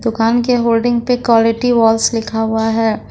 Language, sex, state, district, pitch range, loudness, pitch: Hindi, female, Jharkhand, Ranchi, 225-240 Hz, -14 LUFS, 230 Hz